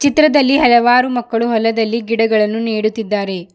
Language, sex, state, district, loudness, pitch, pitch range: Kannada, female, Karnataka, Bidar, -14 LUFS, 225 Hz, 220-245 Hz